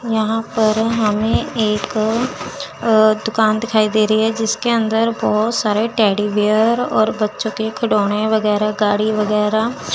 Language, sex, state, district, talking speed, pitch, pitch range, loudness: Hindi, female, Chandigarh, Chandigarh, 135 wpm, 220 Hz, 215-225 Hz, -17 LUFS